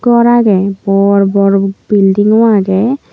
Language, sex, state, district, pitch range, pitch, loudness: Chakma, female, Tripura, Unakoti, 195-230 Hz, 200 Hz, -10 LUFS